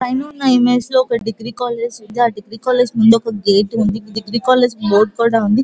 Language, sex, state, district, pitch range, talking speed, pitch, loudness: Telugu, female, Andhra Pradesh, Guntur, 220-245 Hz, 215 wpm, 230 Hz, -16 LUFS